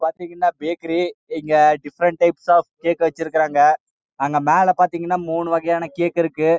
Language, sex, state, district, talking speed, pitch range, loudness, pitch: Tamil, male, Karnataka, Chamarajanagar, 45 wpm, 160-175 Hz, -19 LUFS, 170 Hz